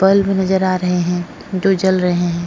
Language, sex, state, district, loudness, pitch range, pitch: Hindi, female, Goa, North and South Goa, -16 LUFS, 175-190 Hz, 185 Hz